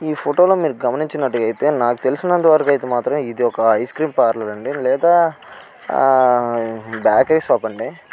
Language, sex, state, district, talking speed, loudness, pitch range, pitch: Telugu, male, Andhra Pradesh, Krishna, 155 wpm, -17 LUFS, 120-155 Hz, 130 Hz